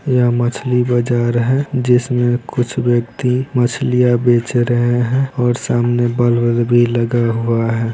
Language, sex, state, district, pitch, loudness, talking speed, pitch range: Hindi, male, Bihar, Araria, 120 Hz, -15 LUFS, 145 wpm, 120-125 Hz